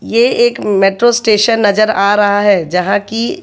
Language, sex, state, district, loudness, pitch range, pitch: Hindi, male, Haryana, Jhajjar, -11 LUFS, 200-230 Hz, 210 Hz